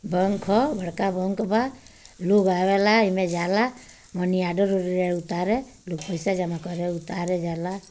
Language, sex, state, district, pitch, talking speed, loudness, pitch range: Bhojpuri, female, Bihar, Gopalganj, 185 Hz, 145 wpm, -24 LUFS, 175-200 Hz